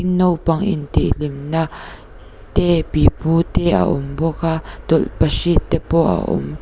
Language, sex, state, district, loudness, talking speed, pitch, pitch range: Mizo, female, Mizoram, Aizawl, -18 LUFS, 145 wpm, 160 Hz, 145-165 Hz